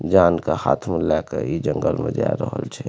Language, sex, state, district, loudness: Maithili, male, Bihar, Supaul, -21 LUFS